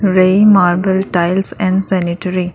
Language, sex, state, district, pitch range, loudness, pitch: Hindi, female, Arunachal Pradesh, Lower Dibang Valley, 180-195 Hz, -13 LUFS, 185 Hz